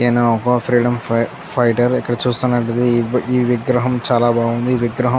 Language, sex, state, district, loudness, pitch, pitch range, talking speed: Telugu, male, Andhra Pradesh, Chittoor, -17 LUFS, 120 Hz, 120-125 Hz, 105 wpm